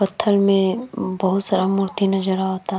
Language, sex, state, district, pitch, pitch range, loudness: Bhojpuri, female, Uttar Pradesh, Gorakhpur, 195 Hz, 190-200 Hz, -20 LUFS